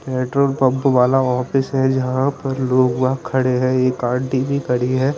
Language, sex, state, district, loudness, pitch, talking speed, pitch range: Hindi, male, Chandigarh, Chandigarh, -18 LUFS, 130 Hz, 195 wpm, 125-135 Hz